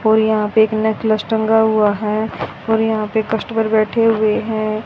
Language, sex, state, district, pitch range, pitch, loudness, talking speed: Hindi, female, Haryana, Rohtak, 215-220 Hz, 220 Hz, -16 LUFS, 185 wpm